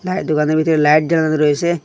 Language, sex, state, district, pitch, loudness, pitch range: Bengali, male, Assam, Hailakandi, 155 Hz, -15 LUFS, 150-170 Hz